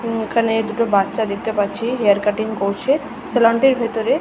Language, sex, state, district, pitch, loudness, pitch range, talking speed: Bengali, female, West Bengal, North 24 Parganas, 225 Hz, -18 LUFS, 210-230 Hz, 155 wpm